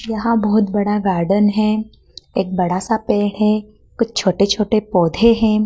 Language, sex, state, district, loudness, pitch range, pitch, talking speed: Hindi, female, Madhya Pradesh, Dhar, -17 LUFS, 200-220 Hz, 210 Hz, 150 wpm